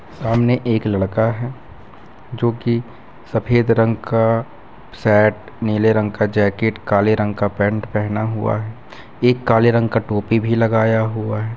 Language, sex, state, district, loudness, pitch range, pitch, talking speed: Hindi, male, Chhattisgarh, Bilaspur, -18 LUFS, 105-115 Hz, 110 Hz, 155 wpm